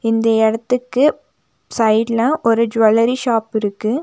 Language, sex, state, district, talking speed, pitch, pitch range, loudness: Tamil, female, Tamil Nadu, Nilgiris, 105 wpm, 230 Hz, 220-240 Hz, -16 LUFS